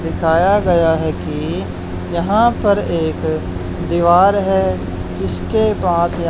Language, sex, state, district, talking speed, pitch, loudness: Hindi, male, Haryana, Charkhi Dadri, 115 wpm, 165 Hz, -16 LUFS